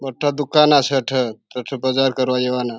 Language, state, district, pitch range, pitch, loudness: Bhili, Maharashtra, Dhule, 125-135 Hz, 130 Hz, -18 LUFS